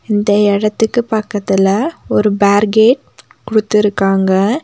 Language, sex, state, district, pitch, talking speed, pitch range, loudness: Tamil, female, Tamil Nadu, Nilgiris, 210 Hz, 80 wpm, 200-220 Hz, -13 LUFS